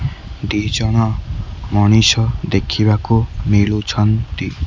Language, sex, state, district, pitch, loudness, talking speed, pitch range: Odia, male, Odisha, Khordha, 105 Hz, -16 LUFS, 65 wpm, 105-110 Hz